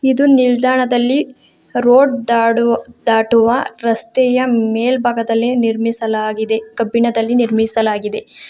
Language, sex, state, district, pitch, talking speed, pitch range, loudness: Kannada, female, Karnataka, Bangalore, 235 Hz, 70 wpm, 225-250 Hz, -14 LUFS